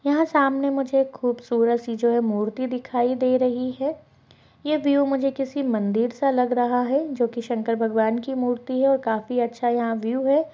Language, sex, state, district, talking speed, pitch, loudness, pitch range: Hindi, female, Chhattisgarh, Balrampur, 195 wpm, 250 Hz, -23 LUFS, 235-275 Hz